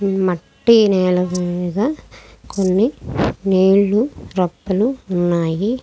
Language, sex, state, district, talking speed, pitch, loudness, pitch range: Telugu, female, Andhra Pradesh, Krishna, 80 wpm, 190 Hz, -17 LUFS, 180-215 Hz